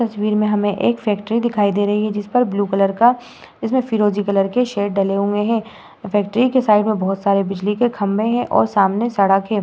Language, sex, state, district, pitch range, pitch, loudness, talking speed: Hindi, female, Uttar Pradesh, Muzaffarnagar, 200-230 Hz, 210 Hz, -18 LUFS, 230 wpm